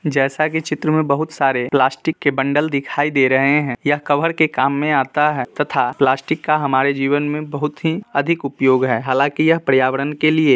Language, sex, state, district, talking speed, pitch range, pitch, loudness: Hindi, male, Bihar, Muzaffarpur, 205 wpm, 135-155 Hz, 145 Hz, -17 LUFS